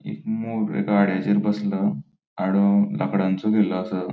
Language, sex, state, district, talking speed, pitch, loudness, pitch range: Konkani, male, Goa, North and South Goa, 100 wpm, 100 Hz, -22 LUFS, 95-105 Hz